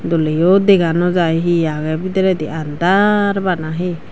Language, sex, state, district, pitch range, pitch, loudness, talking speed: Chakma, female, Tripura, Dhalai, 160-190 Hz, 175 Hz, -15 LUFS, 160 wpm